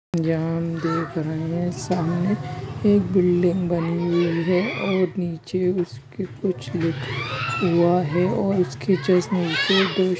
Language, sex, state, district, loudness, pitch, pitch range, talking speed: Hindi, male, Bihar, Bhagalpur, -22 LUFS, 175 Hz, 165-185 Hz, 135 wpm